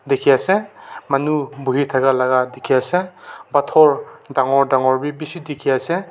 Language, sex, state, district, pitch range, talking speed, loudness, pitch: Nagamese, male, Nagaland, Kohima, 130-155 Hz, 155 wpm, -18 LUFS, 140 Hz